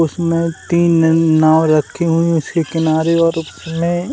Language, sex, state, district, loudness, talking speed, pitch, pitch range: Hindi, male, Uttar Pradesh, Hamirpur, -15 LUFS, 175 wpm, 165 Hz, 160-170 Hz